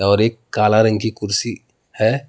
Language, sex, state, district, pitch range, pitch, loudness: Hindi, male, Jharkhand, Palamu, 105-115 Hz, 110 Hz, -18 LUFS